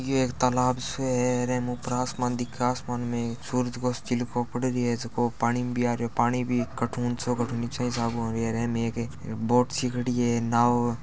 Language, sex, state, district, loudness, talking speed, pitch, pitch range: Marwari, male, Rajasthan, Churu, -27 LUFS, 240 wpm, 120 Hz, 120-125 Hz